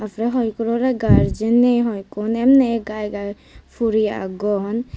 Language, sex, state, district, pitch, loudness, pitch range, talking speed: Chakma, female, Tripura, West Tripura, 225 Hz, -19 LUFS, 210-235 Hz, 170 wpm